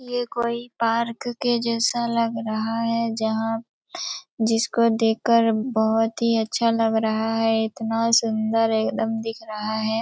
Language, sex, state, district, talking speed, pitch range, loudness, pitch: Hindi, female, Chhattisgarh, Raigarh, 150 wpm, 225-235 Hz, -23 LUFS, 225 Hz